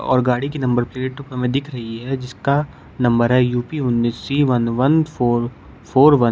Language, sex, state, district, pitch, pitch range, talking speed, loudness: Hindi, male, Uttar Pradesh, Shamli, 125 Hz, 120-140 Hz, 200 wpm, -19 LUFS